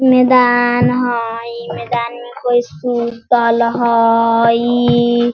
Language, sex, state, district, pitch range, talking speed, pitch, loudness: Hindi, female, Bihar, Sitamarhi, 230-245 Hz, 80 wpm, 240 Hz, -14 LUFS